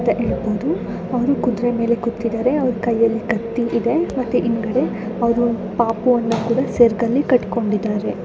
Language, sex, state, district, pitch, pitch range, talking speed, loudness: Kannada, female, Karnataka, Dharwad, 235 Hz, 225-245 Hz, 140 wpm, -19 LUFS